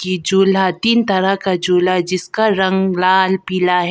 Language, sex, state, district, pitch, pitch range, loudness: Hindi, female, Arunachal Pradesh, Papum Pare, 185 Hz, 180-195 Hz, -15 LUFS